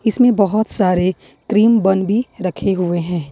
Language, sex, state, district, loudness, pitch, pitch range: Hindi, female, Jharkhand, Ranchi, -16 LUFS, 195 Hz, 180-220 Hz